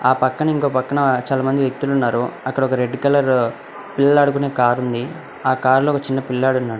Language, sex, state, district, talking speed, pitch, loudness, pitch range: Telugu, male, Telangana, Hyderabad, 195 wpm, 135 Hz, -18 LUFS, 130-140 Hz